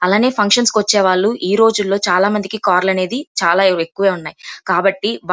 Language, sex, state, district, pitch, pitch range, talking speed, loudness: Telugu, female, Andhra Pradesh, Chittoor, 200 Hz, 185-215 Hz, 145 wpm, -15 LUFS